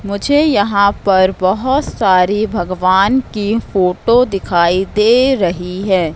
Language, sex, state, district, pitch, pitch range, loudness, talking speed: Hindi, female, Madhya Pradesh, Katni, 200 Hz, 185-230 Hz, -13 LUFS, 115 wpm